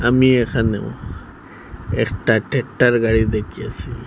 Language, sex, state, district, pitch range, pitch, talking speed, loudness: Bengali, female, Assam, Hailakandi, 100-120 Hz, 115 Hz, 90 wpm, -18 LUFS